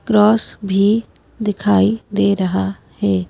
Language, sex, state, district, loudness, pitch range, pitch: Hindi, female, Madhya Pradesh, Bhopal, -17 LUFS, 185-210 Hz, 205 Hz